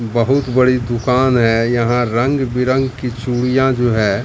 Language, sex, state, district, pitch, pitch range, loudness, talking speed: Hindi, male, Bihar, Katihar, 125 Hz, 120-130 Hz, -15 LUFS, 155 wpm